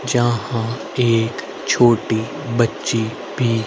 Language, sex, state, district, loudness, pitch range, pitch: Hindi, male, Haryana, Rohtak, -19 LUFS, 110-120 Hz, 115 Hz